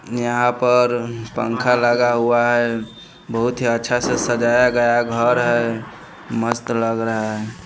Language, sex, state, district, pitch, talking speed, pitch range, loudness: Hindi, male, Punjab, Pathankot, 120 Hz, 140 wpm, 115-120 Hz, -18 LUFS